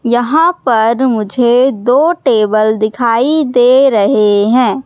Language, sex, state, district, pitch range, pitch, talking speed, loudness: Hindi, female, Madhya Pradesh, Katni, 220-265 Hz, 245 Hz, 110 wpm, -11 LUFS